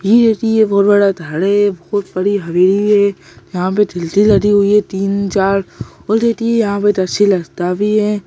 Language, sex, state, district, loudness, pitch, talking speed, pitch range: Hindi, male, Bihar, Jamui, -14 LUFS, 200 Hz, 190 wpm, 190-210 Hz